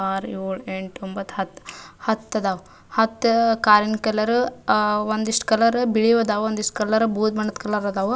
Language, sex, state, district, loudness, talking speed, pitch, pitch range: Kannada, female, Karnataka, Dharwad, -21 LUFS, 170 wpm, 215 Hz, 200-225 Hz